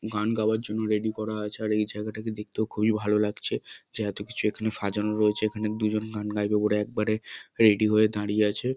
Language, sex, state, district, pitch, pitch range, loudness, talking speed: Bengali, male, West Bengal, Kolkata, 105 Hz, 105-110 Hz, -27 LUFS, 200 wpm